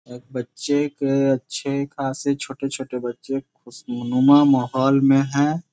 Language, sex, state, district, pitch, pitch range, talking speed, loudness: Hindi, male, Bihar, Gopalganj, 135 Hz, 125-140 Hz, 115 wpm, -21 LUFS